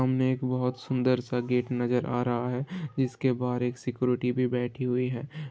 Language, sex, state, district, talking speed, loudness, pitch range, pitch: Hindi, male, Bihar, Saran, 185 wpm, -29 LUFS, 125-130 Hz, 125 Hz